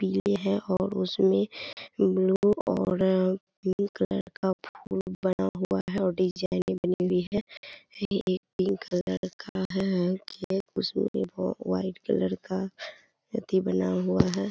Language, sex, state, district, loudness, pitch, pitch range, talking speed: Hindi, female, Bihar, Purnia, -28 LUFS, 185 Hz, 180-195 Hz, 125 wpm